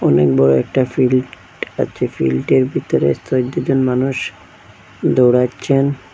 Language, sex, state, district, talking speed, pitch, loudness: Bengali, male, Assam, Hailakandi, 90 wpm, 125 Hz, -16 LUFS